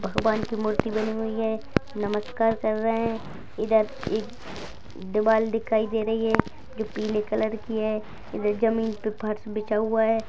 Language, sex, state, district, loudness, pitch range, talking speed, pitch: Hindi, female, Bihar, Gaya, -26 LUFS, 215-225 Hz, 180 wpm, 220 Hz